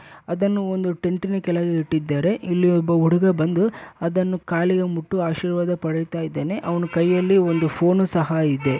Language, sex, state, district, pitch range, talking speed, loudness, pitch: Kannada, male, Karnataka, Bellary, 165-185 Hz, 150 wpm, -21 LUFS, 175 Hz